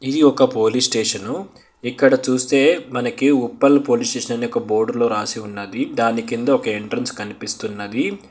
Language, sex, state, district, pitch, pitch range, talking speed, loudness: Telugu, male, Telangana, Hyderabad, 130 Hz, 110-140 Hz, 145 wpm, -19 LUFS